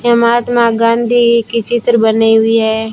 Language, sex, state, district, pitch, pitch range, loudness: Hindi, female, Rajasthan, Bikaner, 235 Hz, 225-235 Hz, -11 LUFS